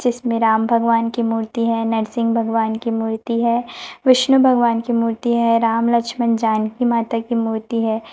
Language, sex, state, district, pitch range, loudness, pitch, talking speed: Hindi, female, Chhattisgarh, Raipur, 225-235 Hz, -18 LUFS, 230 Hz, 170 wpm